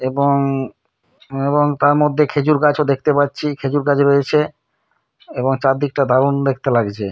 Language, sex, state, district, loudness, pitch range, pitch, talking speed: Bengali, male, West Bengal, Kolkata, -16 LUFS, 135-145 Hz, 140 Hz, 145 wpm